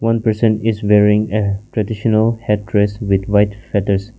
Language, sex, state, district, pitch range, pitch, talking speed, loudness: English, male, Nagaland, Kohima, 100-110 Hz, 105 Hz, 145 wpm, -16 LUFS